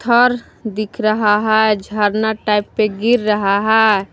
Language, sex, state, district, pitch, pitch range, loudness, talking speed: Hindi, female, Jharkhand, Palamu, 215 Hz, 210-220 Hz, -15 LUFS, 160 wpm